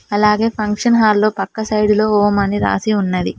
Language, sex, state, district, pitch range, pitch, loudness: Telugu, female, Telangana, Mahabubabad, 205-215 Hz, 210 Hz, -15 LUFS